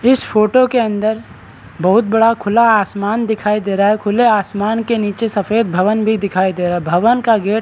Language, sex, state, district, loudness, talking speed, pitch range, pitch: Hindi, male, Chhattisgarh, Rajnandgaon, -15 LUFS, 210 wpm, 200-225 Hz, 215 Hz